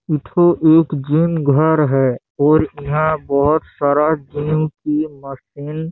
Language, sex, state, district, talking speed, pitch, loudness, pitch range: Hindi, male, Chhattisgarh, Bastar, 130 wpm, 150 Hz, -16 LUFS, 145-155 Hz